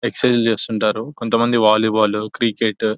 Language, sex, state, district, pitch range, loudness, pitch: Telugu, male, Telangana, Nalgonda, 110-115 Hz, -17 LUFS, 110 Hz